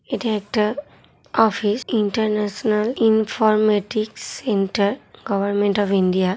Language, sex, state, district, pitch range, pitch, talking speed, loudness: Bengali, female, West Bengal, Jhargram, 205-220 Hz, 210 Hz, 95 wpm, -20 LUFS